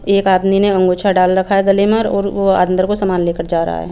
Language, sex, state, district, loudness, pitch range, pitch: Hindi, female, Chandigarh, Chandigarh, -14 LUFS, 180-200 Hz, 195 Hz